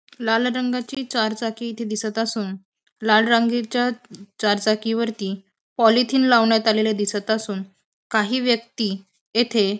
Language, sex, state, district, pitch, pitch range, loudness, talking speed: Marathi, female, Maharashtra, Aurangabad, 225 Hz, 205-235 Hz, -21 LUFS, 130 wpm